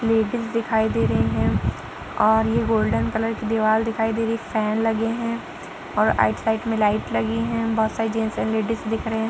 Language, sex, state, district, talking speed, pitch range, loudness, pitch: Hindi, female, Uttar Pradesh, Jalaun, 215 wpm, 215-225 Hz, -22 LUFS, 220 Hz